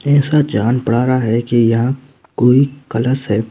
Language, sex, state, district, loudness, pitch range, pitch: Hindi, male, Madhya Pradesh, Bhopal, -15 LUFS, 115-135 Hz, 125 Hz